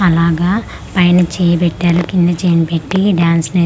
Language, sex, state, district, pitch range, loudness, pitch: Telugu, female, Andhra Pradesh, Manyam, 170-180 Hz, -13 LUFS, 175 Hz